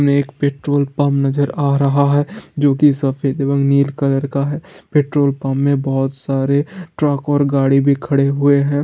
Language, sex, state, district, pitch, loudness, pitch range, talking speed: Hindi, male, Bihar, Jamui, 140 Hz, -16 LUFS, 140-145 Hz, 205 wpm